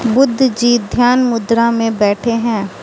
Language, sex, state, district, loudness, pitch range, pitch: Hindi, female, Manipur, Imphal West, -14 LUFS, 225-245 Hz, 235 Hz